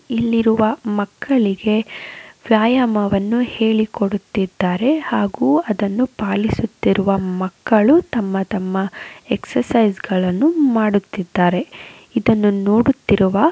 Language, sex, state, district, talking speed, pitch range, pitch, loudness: Kannada, female, Karnataka, Raichur, 65 wpm, 200-235 Hz, 215 Hz, -17 LUFS